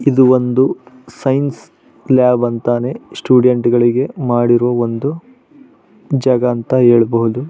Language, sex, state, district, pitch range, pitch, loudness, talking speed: Kannada, male, Karnataka, Raichur, 120-135 Hz, 125 Hz, -14 LUFS, 95 wpm